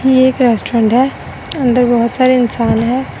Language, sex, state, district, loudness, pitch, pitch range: Hindi, female, Assam, Sonitpur, -13 LUFS, 245 Hz, 235-260 Hz